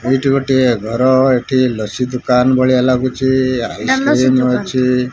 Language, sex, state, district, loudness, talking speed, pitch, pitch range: Odia, male, Odisha, Malkangiri, -14 LUFS, 115 wpm, 130 Hz, 125-130 Hz